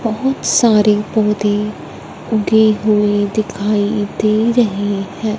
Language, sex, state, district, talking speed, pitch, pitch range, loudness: Hindi, female, Punjab, Fazilka, 100 wpm, 210 Hz, 205-220 Hz, -15 LUFS